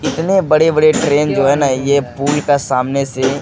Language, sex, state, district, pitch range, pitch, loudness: Hindi, male, Bihar, Kishanganj, 135-150 Hz, 140 Hz, -14 LUFS